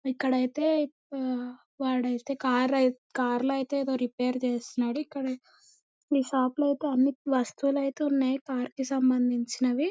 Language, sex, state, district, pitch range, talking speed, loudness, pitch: Telugu, female, Andhra Pradesh, Anantapur, 250-275 Hz, 140 wpm, -28 LUFS, 260 Hz